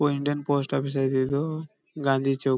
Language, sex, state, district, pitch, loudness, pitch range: Kannada, male, Karnataka, Bijapur, 140 Hz, -26 LUFS, 135-145 Hz